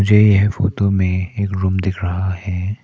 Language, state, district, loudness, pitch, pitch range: Hindi, Arunachal Pradesh, Papum Pare, -17 LUFS, 95 Hz, 95-100 Hz